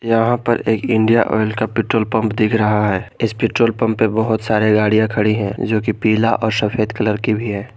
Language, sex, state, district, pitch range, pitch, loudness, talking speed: Hindi, male, Jharkhand, Garhwa, 105-115 Hz, 110 Hz, -17 LUFS, 225 wpm